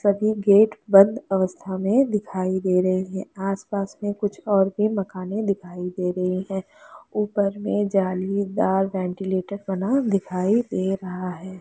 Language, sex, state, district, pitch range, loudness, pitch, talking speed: Hindi, female, Chhattisgarh, Raigarh, 185-205 Hz, -23 LUFS, 195 Hz, 145 wpm